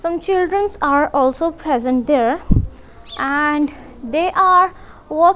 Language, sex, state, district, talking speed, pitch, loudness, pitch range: English, female, Punjab, Kapurthala, 100 wpm, 300 Hz, -17 LUFS, 275-360 Hz